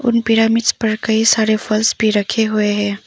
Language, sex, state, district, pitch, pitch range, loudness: Hindi, female, Arunachal Pradesh, Papum Pare, 220 Hz, 215-225 Hz, -15 LUFS